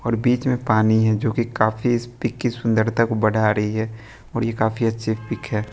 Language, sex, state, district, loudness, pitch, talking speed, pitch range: Hindi, male, Bihar, West Champaran, -21 LUFS, 115 Hz, 230 wpm, 110-120 Hz